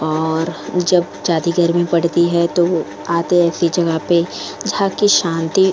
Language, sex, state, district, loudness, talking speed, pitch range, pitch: Hindi, female, Goa, North and South Goa, -16 LUFS, 170 wpm, 165-175 Hz, 170 Hz